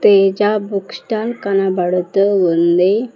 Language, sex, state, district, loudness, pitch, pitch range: Telugu, female, Telangana, Mahabubabad, -15 LUFS, 195 Hz, 180-210 Hz